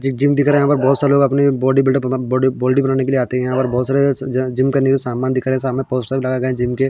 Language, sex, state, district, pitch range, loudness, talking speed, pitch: Hindi, male, Bihar, Patna, 130-135 Hz, -16 LUFS, 330 wpm, 130 Hz